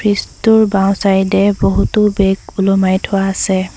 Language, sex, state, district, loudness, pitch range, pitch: Assamese, female, Assam, Sonitpur, -13 LUFS, 190-205 Hz, 195 Hz